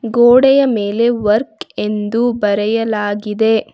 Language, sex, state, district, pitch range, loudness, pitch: Kannada, female, Karnataka, Bangalore, 210-240 Hz, -14 LUFS, 225 Hz